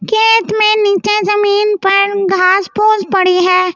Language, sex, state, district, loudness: Hindi, female, Delhi, New Delhi, -11 LUFS